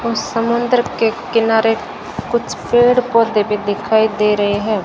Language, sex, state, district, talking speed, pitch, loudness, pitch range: Hindi, female, Rajasthan, Bikaner, 150 wpm, 225 Hz, -16 LUFS, 210-235 Hz